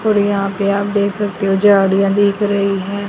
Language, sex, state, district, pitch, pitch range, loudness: Hindi, female, Haryana, Rohtak, 200 Hz, 195-205 Hz, -15 LUFS